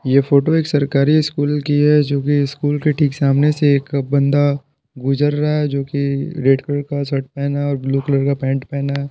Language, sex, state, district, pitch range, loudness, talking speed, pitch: Hindi, male, Bihar, Patna, 140-145 Hz, -17 LUFS, 225 wpm, 140 Hz